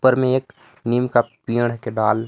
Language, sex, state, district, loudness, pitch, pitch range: Hindi, male, Jharkhand, Palamu, -21 LUFS, 120 Hz, 115-130 Hz